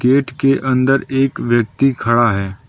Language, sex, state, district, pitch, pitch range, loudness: Hindi, male, Arunachal Pradesh, Lower Dibang Valley, 130 Hz, 120-135 Hz, -15 LUFS